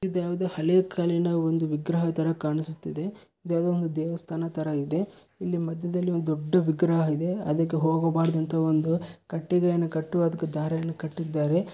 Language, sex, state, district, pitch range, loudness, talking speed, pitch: Kannada, male, Karnataka, Bellary, 160-175 Hz, -27 LUFS, 145 wpm, 165 Hz